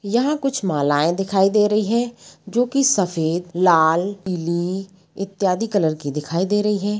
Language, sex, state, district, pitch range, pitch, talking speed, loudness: Hindi, female, Bihar, Darbhanga, 170-210 Hz, 195 Hz, 165 wpm, -20 LUFS